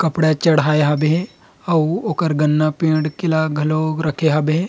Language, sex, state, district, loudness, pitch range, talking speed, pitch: Chhattisgarhi, male, Chhattisgarh, Rajnandgaon, -17 LUFS, 155-165 Hz, 180 wpm, 155 Hz